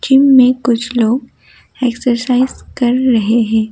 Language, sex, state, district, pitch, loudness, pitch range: Hindi, female, Assam, Kamrup Metropolitan, 245 Hz, -13 LUFS, 230-255 Hz